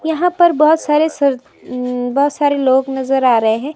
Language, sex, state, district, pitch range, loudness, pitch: Hindi, female, Himachal Pradesh, Shimla, 255-310 Hz, -14 LUFS, 280 Hz